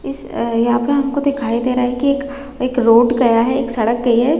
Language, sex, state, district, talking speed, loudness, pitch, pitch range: Hindi, female, Chhattisgarh, Raigarh, 260 wpm, -16 LUFS, 245 Hz, 235-275 Hz